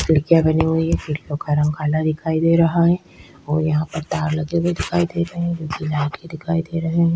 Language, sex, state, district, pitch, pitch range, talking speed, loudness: Hindi, female, Chhattisgarh, Korba, 160 Hz, 155-170 Hz, 225 wpm, -20 LUFS